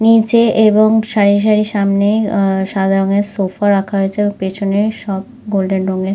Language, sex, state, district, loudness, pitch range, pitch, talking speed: Bengali, female, West Bengal, Dakshin Dinajpur, -14 LUFS, 195-215 Hz, 205 Hz, 155 wpm